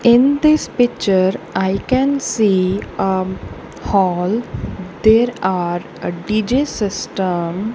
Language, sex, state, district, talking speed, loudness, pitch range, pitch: English, female, Punjab, Kapurthala, 100 wpm, -17 LUFS, 185-240 Hz, 200 Hz